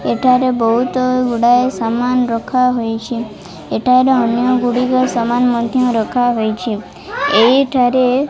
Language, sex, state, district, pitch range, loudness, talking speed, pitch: Odia, female, Odisha, Malkangiri, 235-255 Hz, -14 LUFS, 85 wpm, 245 Hz